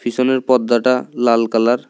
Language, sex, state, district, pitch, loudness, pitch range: Bengali, male, Tripura, South Tripura, 120 Hz, -16 LUFS, 120-130 Hz